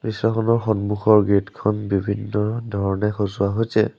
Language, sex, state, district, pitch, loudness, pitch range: Assamese, male, Assam, Sonitpur, 105 Hz, -21 LUFS, 100-110 Hz